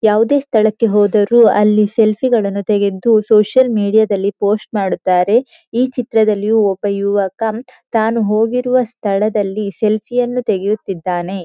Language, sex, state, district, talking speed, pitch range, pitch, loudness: Kannada, female, Karnataka, Dakshina Kannada, 115 wpm, 205-230 Hz, 215 Hz, -15 LUFS